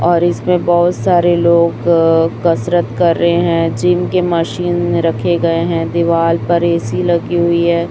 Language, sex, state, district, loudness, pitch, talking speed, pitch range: Hindi, female, Chhattisgarh, Raipur, -13 LUFS, 170 Hz, 165 wpm, 165-175 Hz